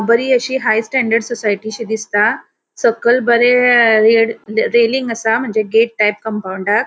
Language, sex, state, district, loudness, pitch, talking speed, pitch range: Konkani, female, Goa, North and South Goa, -14 LUFS, 225 Hz, 140 wpm, 220-240 Hz